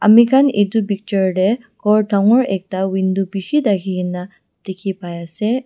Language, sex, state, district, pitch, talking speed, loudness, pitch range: Nagamese, female, Nagaland, Dimapur, 195 Hz, 160 wpm, -17 LUFS, 190-220 Hz